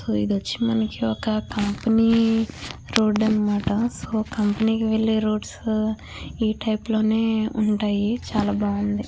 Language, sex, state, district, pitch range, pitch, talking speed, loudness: Telugu, female, Andhra Pradesh, Chittoor, 205-220 Hz, 215 Hz, 120 wpm, -23 LUFS